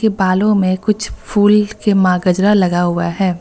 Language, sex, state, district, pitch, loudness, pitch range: Hindi, female, Uttar Pradesh, Lucknow, 195 Hz, -14 LUFS, 180-210 Hz